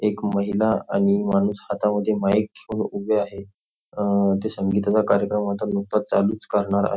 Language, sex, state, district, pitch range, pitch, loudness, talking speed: Marathi, male, Maharashtra, Nagpur, 100-105 Hz, 100 Hz, -22 LUFS, 145 wpm